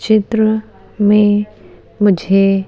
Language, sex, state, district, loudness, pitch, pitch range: Hindi, female, Madhya Pradesh, Bhopal, -14 LUFS, 210 Hz, 195-215 Hz